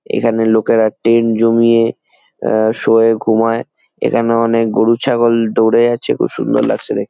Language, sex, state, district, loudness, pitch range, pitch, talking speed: Bengali, male, West Bengal, Jalpaiguri, -13 LUFS, 110-115 Hz, 115 Hz, 135 wpm